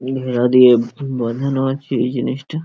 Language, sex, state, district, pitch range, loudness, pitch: Bengali, male, West Bengal, Purulia, 125-135 Hz, -17 LUFS, 130 Hz